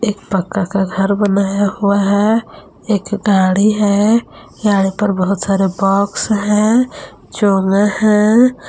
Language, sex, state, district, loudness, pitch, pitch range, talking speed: Hindi, female, Jharkhand, Palamu, -14 LUFS, 205 Hz, 195-215 Hz, 125 wpm